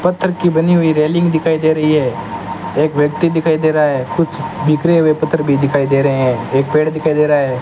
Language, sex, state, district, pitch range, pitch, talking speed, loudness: Hindi, male, Rajasthan, Bikaner, 140-160 Hz, 155 Hz, 235 wpm, -14 LUFS